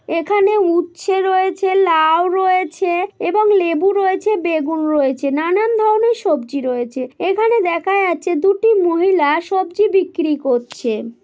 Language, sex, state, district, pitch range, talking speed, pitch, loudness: Bengali, female, West Bengal, Malda, 315-390 Hz, 115 wpm, 365 Hz, -16 LUFS